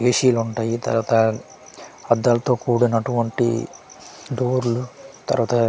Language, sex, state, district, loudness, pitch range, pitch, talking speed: Telugu, male, Andhra Pradesh, Manyam, -21 LUFS, 115-125 Hz, 120 Hz, 105 wpm